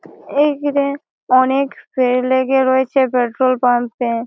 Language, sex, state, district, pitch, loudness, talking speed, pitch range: Bengali, female, West Bengal, Malda, 260 Hz, -16 LUFS, 140 wpm, 250-280 Hz